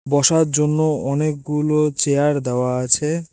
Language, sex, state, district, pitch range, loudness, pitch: Bengali, male, West Bengal, Cooch Behar, 140-155 Hz, -18 LUFS, 150 Hz